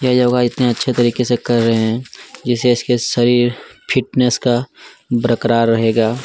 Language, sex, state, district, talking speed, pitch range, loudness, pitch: Hindi, male, Chhattisgarh, Kabirdham, 175 wpm, 115-125 Hz, -16 LUFS, 120 Hz